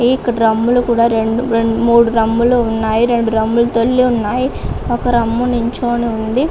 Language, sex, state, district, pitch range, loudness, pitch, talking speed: Telugu, female, Andhra Pradesh, Guntur, 225-240 Hz, -14 LUFS, 235 Hz, 130 wpm